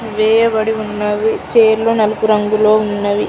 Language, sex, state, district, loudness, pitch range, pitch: Telugu, female, Telangana, Karimnagar, -14 LUFS, 210-220 Hz, 215 Hz